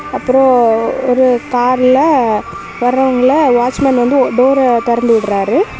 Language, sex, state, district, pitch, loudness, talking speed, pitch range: Tamil, female, Tamil Nadu, Kanyakumari, 250 Hz, -12 LUFS, 95 wpm, 235-265 Hz